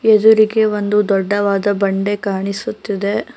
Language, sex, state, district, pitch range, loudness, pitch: Kannada, female, Karnataka, Bangalore, 200-215 Hz, -16 LUFS, 205 Hz